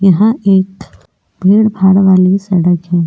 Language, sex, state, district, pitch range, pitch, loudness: Hindi, female, Goa, North and South Goa, 185-195 Hz, 190 Hz, -10 LUFS